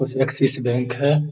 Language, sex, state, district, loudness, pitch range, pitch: Hindi, male, Bihar, Gaya, -16 LUFS, 125-140 Hz, 130 Hz